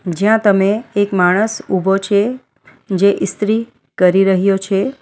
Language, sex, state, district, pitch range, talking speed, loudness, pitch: Gujarati, female, Gujarat, Valsad, 190-215 Hz, 130 wpm, -15 LUFS, 200 Hz